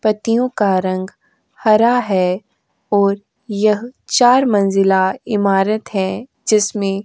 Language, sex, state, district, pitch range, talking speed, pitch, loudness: Hindi, female, Uttar Pradesh, Jyotiba Phule Nagar, 195-230 Hz, 110 wpm, 205 Hz, -16 LUFS